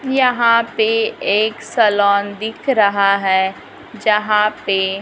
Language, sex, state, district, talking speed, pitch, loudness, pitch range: Hindi, female, Maharashtra, Gondia, 120 wpm, 215 Hz, -16 LUFS, 200-255 Hz